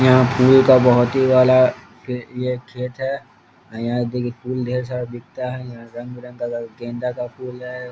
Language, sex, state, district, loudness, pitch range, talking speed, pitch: Hindi, male, Bihar, East Champaran, -19 LUFS, 120-130 Hz, 190 wpm, 125 Hz